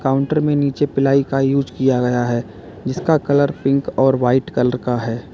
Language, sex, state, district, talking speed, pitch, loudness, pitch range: Hindi, male, Uttar Pradesh, Lalitpur, 190 wpm, 135 Hz, -18 LUFS, 125-140 Hz